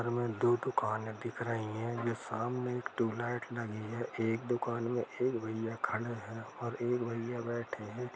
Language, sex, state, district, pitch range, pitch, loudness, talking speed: Hindi, male, Jharkhand, Jamtara, 115-120 Hz, 120 Hz, -36 LUFS, 190 wpm